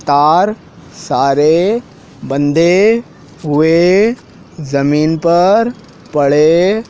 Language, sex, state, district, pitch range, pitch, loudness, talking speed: Hindi, male, Madhya Pradesh, Dhar, 150-200 Hz, 165 Hz, -12 LUFS, 60 wpm